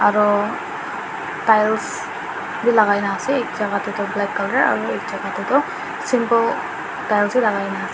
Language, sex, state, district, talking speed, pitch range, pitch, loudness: Nagamese, male, Nagaland, Dimapur, 175 wpm, 205-235 Hz, 210 Hz, -20 LUFS